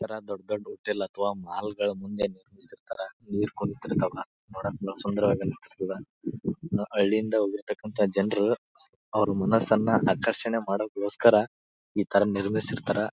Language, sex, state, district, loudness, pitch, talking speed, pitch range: Kannada, male, Karnataka, Bijapur, -28 LUFS, 105 Hz, 115 wpm, 100-110 Hz